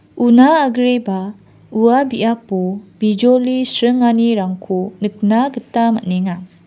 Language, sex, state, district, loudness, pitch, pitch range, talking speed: Garo, female, Meghalaya, West Garo Hills, -15 LUFS, 230 Hz, 190-245 Hz, 80 wpm